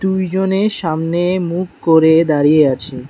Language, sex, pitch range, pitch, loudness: Bengali, male, 155-185 Hz, 165 Hz, -14 LUFS